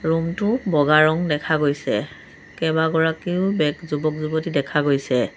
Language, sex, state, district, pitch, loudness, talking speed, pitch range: Assamese, male, Assam, Sonitpur, 160 Hz, -21 LUFS, 125 wpm, 150-165 Hz